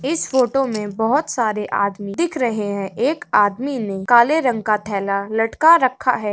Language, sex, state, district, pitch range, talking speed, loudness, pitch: Hindi, female, Uttar Pradesh, Hamirpur, 205-265 Hz, 180 wpm, -18 LUFS, 225 Hz